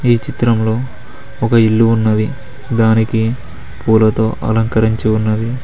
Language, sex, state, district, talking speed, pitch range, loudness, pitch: Telugu, male, Telangana, Mahabubabad, 95 wpm, 110-120 Hz, -14 LUFS, 110 Hz